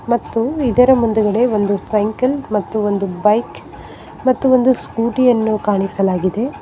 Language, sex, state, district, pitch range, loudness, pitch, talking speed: Kannada, female, Karnataka, Bangalore, 205-250 Hz, -16 LUFS, 225 Hz, 110 wpm